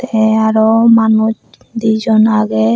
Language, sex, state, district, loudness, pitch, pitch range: Chakma, female, Tripura, Unakoti, -11 LUFS, 220 Hz, 220-225 Hz